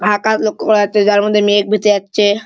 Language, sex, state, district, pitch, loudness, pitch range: Bengali, male, West Bengal, Malda, 210 Hz, -13 LUFS, 205-215 Hz